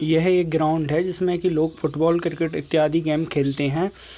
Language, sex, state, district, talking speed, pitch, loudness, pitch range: Hindi, male, Chhattisgarh, Raigarh, 200 wpm, 160 Hz, -22 LUFS, 155-170 Hz